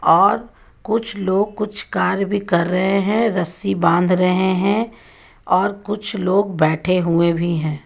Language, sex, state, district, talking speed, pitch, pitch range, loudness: Hindi, female, Jharkhand, Ranchi, 150 wpm, 190 Hz, 175-205 Hz, -18 LUFS